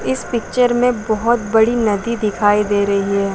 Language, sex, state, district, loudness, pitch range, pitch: Hindi, female, Chhattisgarh, Balrampur, -16 LUFS, 205-235 Hz, 215 Hz